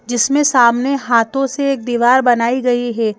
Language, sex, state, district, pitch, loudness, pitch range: Hindi, female, Madhya Pradesh, Bhopal, 245 Hz, -14 LUFS, 235-270 Hz